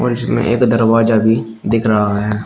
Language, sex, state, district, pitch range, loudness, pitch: Hindi, male, Uttar Pradesh, Shamli, 110-115 Hz, -14 LUFS, 115 Hz